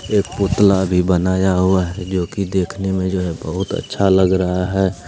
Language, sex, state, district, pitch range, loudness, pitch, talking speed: Hindi, male, Bihar, Lakhisarai, 90-95 Hz, -17 LUFS, 95 Hz, 200 wpm